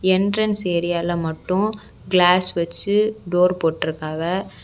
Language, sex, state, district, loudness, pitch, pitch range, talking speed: Tamil, female, Tamil Nadu, Kanyakumari, -20 LUFS, 180 Hz, 170-195 Hz, 90 wpm